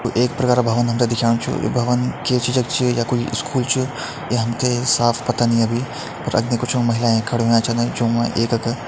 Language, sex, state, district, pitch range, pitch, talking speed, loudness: Hindi, male, Uttarakhand, Tehri Garhwal, 115-125 Hz, 120 Hz, 250 wpm, -19 LUFS